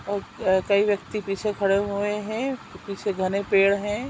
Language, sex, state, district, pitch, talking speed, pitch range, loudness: Hindi, female, Chhattisgarh, Sukma, 200 Hz, 175 wpm, 195-210 Hz, -24 LUFS